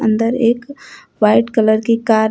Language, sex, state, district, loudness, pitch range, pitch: Hindi, female, Uttar Pradesh, Shamli, -15 LUFS, 220-240 Hz, 230 Hz